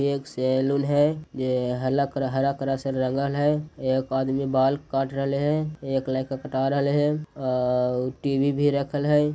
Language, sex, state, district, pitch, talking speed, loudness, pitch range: Magahi, male, Bihar, Jahanabad, 135 Hz, 180 wpm, -25 LUFS, 130-145 Hz